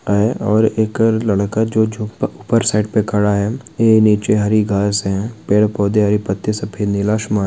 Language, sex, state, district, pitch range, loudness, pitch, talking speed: Hindi, male, Bihar, Saran, 105-110 Hz, -16 LUFS, 105 Hz, 185 wpm